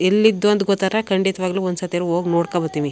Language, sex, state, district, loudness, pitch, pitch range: Kannada, female, Karnataka, Chamarajanagar, -19 LUFS, 185 Hz, 175-200 Hz